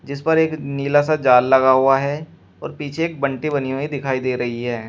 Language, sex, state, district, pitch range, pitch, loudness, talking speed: Hindi, male, Uttar Pradesh, Shamli, 130-150 Hz, 140 Hz, -18 LUFS, 230 wpm